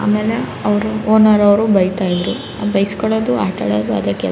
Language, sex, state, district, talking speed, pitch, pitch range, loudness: Kannada, female, Karnataka, Raichur, 165 wpm, 205 Hz, 185-215 Hz, -15 LUFS